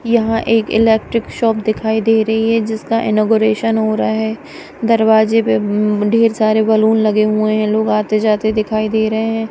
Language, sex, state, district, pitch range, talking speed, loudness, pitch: Hindi, female, Punjab, Kapurthala, 215-225 Hz, 185 wpm, -14 LUFS, 220 Hz